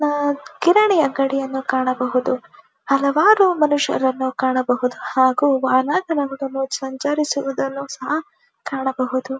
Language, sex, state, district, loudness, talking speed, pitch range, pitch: Kannada, female, Karnataka, Dharwad, -19 LUFS, 70 wpm, 260-290 Hz, 270 Hz